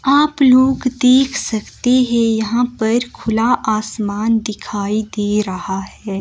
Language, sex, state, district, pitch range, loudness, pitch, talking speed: Hindi, female, Himachal Pradesh, Shimla, 210-250 Hz, -16 LUFS, 225 Hz, 125 wpm